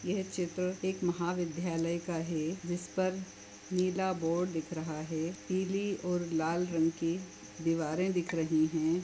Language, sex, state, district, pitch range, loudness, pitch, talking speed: Hindi, male, Goa, North and South Goa, 160-185 Hz, -34 LUFS, 175 Hz, 140 wpm